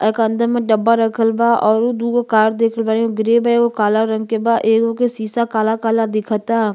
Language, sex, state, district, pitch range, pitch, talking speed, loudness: Bhojpuri, female, Uttar Pradesh, Gorakhpur, 220-235 Hz, 225 Hz, 205 wpm, -16 LUFS